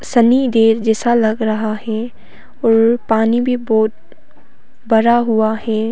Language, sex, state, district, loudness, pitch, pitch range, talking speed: Hindi, female, Arunachal Pradesh, Papum Pare, -15 LUFS, 225 Hz, 220-235 Hz, 130 wpm